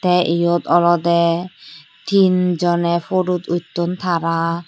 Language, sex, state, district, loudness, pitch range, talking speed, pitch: Chakma, female, Tripura, Unakoti, -17 LUFS, 170-180 Hz, 90 wpm, 175 Hz